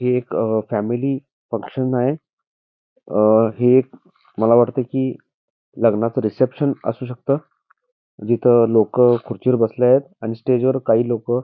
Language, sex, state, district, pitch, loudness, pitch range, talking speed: Marathi, male, Karnataka, Belgaum, 125 Hz, -18 LUFS, 115-130 Hz, 130 wpm